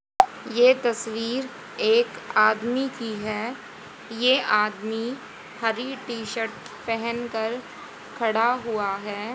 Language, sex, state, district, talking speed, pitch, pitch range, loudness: Hindi, female, Haryana, Jhajjar, 105 wpm, 230 Hz, 220-250 Hz, -24 LUFS